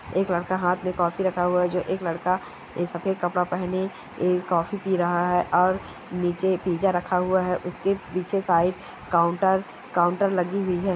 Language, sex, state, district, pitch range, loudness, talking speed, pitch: Hindi, female, Bihar, East Champaran, 175-190 Hz, -24 LUFS, 185 wpm, 180 Hz